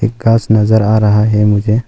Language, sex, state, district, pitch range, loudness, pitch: Hindi, male, Arunachal Pradesh, Longding, 105-115 Hz, -11 LUFS, 110 Hz